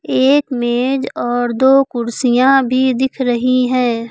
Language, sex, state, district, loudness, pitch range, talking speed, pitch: Hindi, female, Uttar Pradesh, Lucknow, -14 LUFS, 245-265 Hz, 130 wpm, 255 Hz